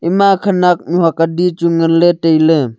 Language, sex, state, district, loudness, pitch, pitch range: Wancho, male, Arunachal Pradesh, Longding, -12 LUFS, 170 Hz, 165-180 Hz